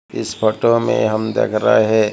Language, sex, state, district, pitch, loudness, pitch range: Hindi, male, Odisha, Malkangiri, 110 Hz, -16 LUFS, 110-115 Hz